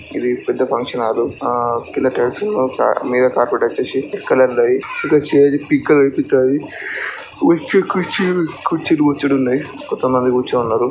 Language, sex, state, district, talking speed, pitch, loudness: Telugu, male, Andhra Pradesh, Srikakulam, 170 wpm, 150 Hz, -16 LUFS